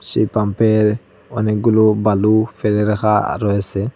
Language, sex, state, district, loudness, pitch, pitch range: Bengali, male, Assam, Hailakandi, -16 LUFS, 105 Hz, 105-110 Hz